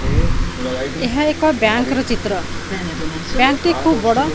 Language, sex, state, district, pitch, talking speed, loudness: Odia, female, Odisha, Khordha, 240 Hz, 125 wpm, -18 LUFS